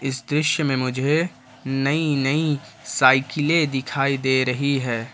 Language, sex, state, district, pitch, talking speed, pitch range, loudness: Hindi, male, Jharkhand, Ranchi, 135 Hz, 140 wpm, 130-150 Hz, -21 LUFS